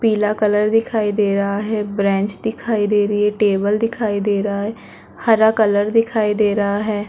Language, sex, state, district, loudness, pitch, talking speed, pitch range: Hindi, female, Chhattisgarh, Korba, -18 LUFS, 210 Hz, 185 wpm, 205-220 Hz